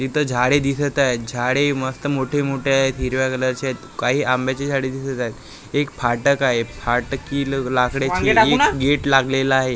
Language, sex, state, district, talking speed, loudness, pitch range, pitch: Marathi, male, Maharashtra, Gondia, 165 wpm, -19 LUFS, 125-140 Hz, 135 Hz